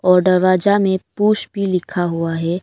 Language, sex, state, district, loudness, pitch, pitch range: Hindi, female, Arunachal Pradesh, Longding, -16 LUFS, 185 Hz, 175-195 Hz